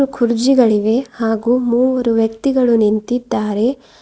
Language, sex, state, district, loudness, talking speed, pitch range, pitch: Kannada, female, Karnataka, Bidar, -15 LUFS, 75 wpm, 225-255 Hz, 240 Hz